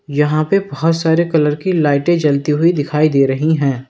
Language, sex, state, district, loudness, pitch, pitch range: Hindi, male, Uttar Pradesh, Lalitpur, -15 LUFS, 155 Hz, 145-165 Hz